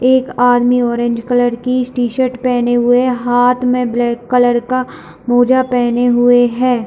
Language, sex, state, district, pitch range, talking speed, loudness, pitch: Hindi, female, Chhattisgarh, Bilaspur, 240-250 Hz, 150 wpm, -13 LUFS, 245 Hz